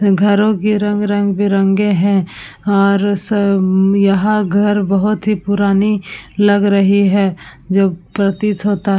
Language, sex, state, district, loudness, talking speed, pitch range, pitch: Hindi, female, Uttar Pradesh, Budaun, -14 LUFS, 125 wpm, 195-205 Hz, 200 Hz